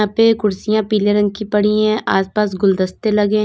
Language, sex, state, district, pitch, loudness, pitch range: Hindi, female, Uttar Pradesh, Lalitpur, 210 Hz, -16 LUFS, 205-215 Hz